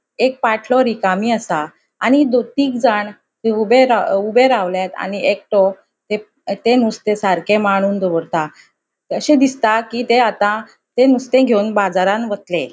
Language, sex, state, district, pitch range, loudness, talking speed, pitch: Konkani, female, Goa, North and South Goa, 195-245 Hz, -16 LUFS, 135 wpm, 215 Hz